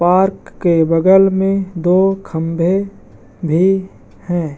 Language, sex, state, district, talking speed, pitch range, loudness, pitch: Hindi, male, Bihar, Madhepura, 120 wpm, 170-195 Hz, -15 LUFS, 185 Hz